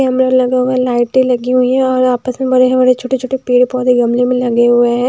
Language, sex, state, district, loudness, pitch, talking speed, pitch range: Hindi, female, Bihar, Patna, -12 LUFS, 255 Hz, 225 wpm, 245-255 Hz